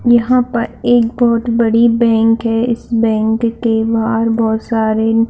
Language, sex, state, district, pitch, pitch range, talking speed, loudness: Hindi, female, Bihar, Saharsa, 230 Hz, 225-235 Hz, 160 wpm, -14 LUFS